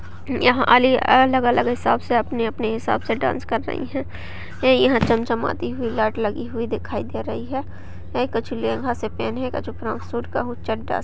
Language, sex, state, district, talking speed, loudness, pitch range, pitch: Hindi, female, Uttar Pradesh, Jyotiba Phule Nagar, 185 wpm, -21 LUFS, 210-245 Hz, 230 Hz